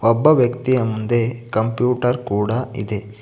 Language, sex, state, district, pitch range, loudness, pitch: Kannada, male, Karnataka, Bangalore, 110-125 Hz, -19 LUFS, 115 Hz